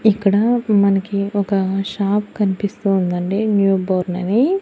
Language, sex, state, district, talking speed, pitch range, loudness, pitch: Telugu, female, Andhra Pradesh, Annamaya, 115 wpm, 195-210 Hz, -18 LUFS, 200 Hz